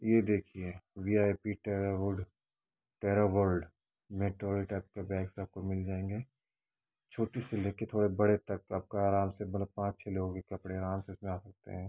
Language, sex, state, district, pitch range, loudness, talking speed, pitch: Hindi, male, Uttar Pradesh, Etah, 95-105 Hz, -35 LUFS, 170 wpm, 100 Hz